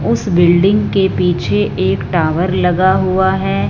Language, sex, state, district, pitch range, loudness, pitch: Hindi, female, Punjab, Fazilka, 155-190 Hz, -14 LUFS, 180 Hz